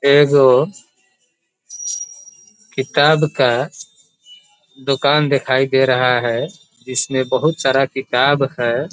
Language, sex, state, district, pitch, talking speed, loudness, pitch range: Hindi, male, Bihar, East Champaran, 135 Hz, 95 wpm, -16 LUFS, 130-155 Hz